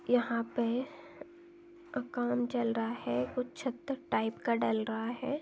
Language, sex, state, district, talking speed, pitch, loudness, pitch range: Hindi, female, Chhattisgarh, Rajnandgaon, 145 wpm, 245 Hz, -34 LUFS, 230-285 Hz